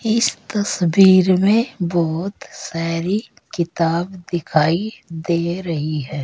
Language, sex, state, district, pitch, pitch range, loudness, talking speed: Hindi, female, Uttar Pradesh, Saharanpur, 175 Hz, 165-195 Hz, -19 LUFS, 95 wpm